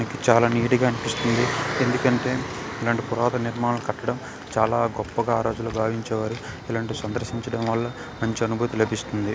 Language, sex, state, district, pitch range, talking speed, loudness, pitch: Telugu, male, Karnataka, Gulbarga, 110-120 Hz, 130 wpm, -24 LUFS, 115 Hz